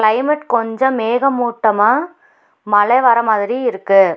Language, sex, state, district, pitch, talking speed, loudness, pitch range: Tamil, female, Tamil Nadu, Nilgiris, 235 Hz, 85 wpm, -15 LUFS, 215-260 Hz